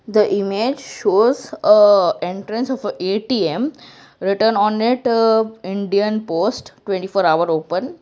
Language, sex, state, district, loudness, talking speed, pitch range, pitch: English, female, Gujarat, Valsad, -18 LUFS, 125 wpm, 195-245 Hz, 215 Hz